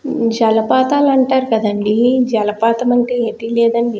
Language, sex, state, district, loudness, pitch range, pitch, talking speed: Telugu, female, Andhra Pradesh, Guntur, -14 LUFS, 225-255 Hz, 235 Hz, 120 wpm